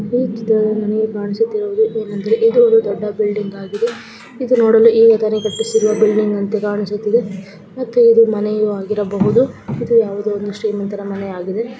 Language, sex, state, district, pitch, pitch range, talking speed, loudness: Kannada, female, Karnataka, Gulbarga, 215 Hz, 205-230 Hz, 135 wpm, -16 LUFS